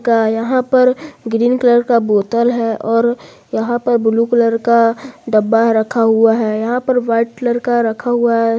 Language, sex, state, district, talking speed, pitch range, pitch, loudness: Hindi, female, Jharkhand, Garhwa, 180 wpm, 225-240 Hz, 230 Hz, -14 LUFS